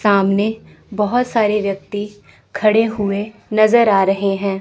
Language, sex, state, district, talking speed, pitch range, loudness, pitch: Hindi, female, Chandigarh, Chandigarh, 130 wpm, 200-215 Hz, -17 LUFS, 205 Hz